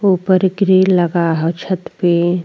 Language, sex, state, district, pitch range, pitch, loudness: Bhojpuri, female, Uttar Pradesh, Ghazipur, 170-185 Hz, 180 Hz, -15 LUFS